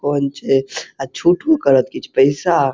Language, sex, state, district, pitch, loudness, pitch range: Maithili, male, Bihar, Saharsa, 140 Hz, -16 LUFS, 135-180 Hz